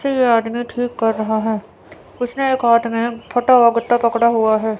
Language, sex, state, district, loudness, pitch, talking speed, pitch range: Hindi, female, Chandigarh, Chandigarh, -17 LUFS, 235 Hz, 200 wpm, 225-245 Hz